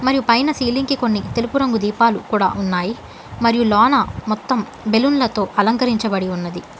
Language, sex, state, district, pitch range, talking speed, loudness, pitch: Telugu, female, Telangana, Hyderabad, 210-255 Hz, 140 wpm, -18 LUFS, 230 Hz